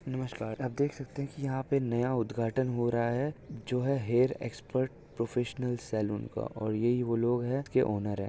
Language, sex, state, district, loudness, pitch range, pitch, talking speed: Hindi, male, Maharashtra, Solapur, -32 LUFS, 115-130 Hz, 125 Hz, 210 wpm